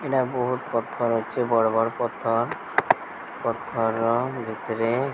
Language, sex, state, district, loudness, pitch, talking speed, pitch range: Odia, female, Odisha, Sambalpur, -25 LUFS, 115 Hz, 105 wpm, 115-125 Hz